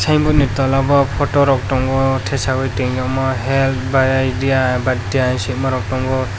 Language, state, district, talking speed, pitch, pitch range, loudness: Kokborok, Tripura, West Tripura, 140 wpm, 130 Hz, 130-135 Hz, -16 LUFS